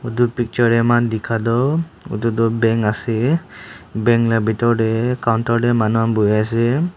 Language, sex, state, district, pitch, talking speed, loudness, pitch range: Nagamese, male, Nagaland, Dimapur, 115 Hz, 145 wpm, -18 LUFS, 115-120 Hz